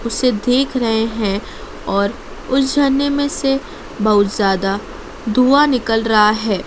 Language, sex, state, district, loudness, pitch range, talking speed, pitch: Hindi, female, Madhya Pradesh, Dhar, -16 LUFS, 210-270 Hz, 135 wpm, 230 Hz